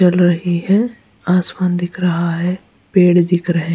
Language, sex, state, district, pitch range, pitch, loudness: Hindi, female, Goa, North and South Goa, 175-180 Hz, 175 Hz, -16 LUFS